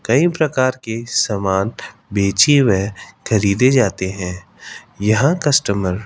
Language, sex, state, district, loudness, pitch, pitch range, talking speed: Hindi, male, Rajasthan, Jaipur, -17 LUFS, 110 Hz, 100-130 Hz, 120 wpm